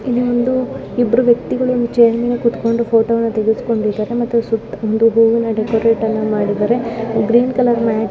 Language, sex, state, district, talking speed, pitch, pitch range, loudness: Kannada, female, Karnataka, Shimoga, 140 wpm, 230 Hz, 225-240 Hz, -16 LUFS